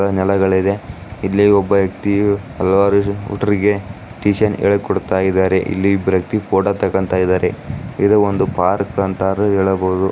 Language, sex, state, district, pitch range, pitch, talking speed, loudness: Kannada, male, Karnataka, Gulbarga, 95-100 Hz, 100 Hz, 115 wpm, -16 LUFS